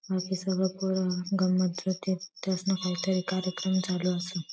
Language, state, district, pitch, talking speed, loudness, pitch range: Bhili, Maharashtra, Dhule, 185 Hz, 80 wpm, -29 LUFS, 180-190 Hz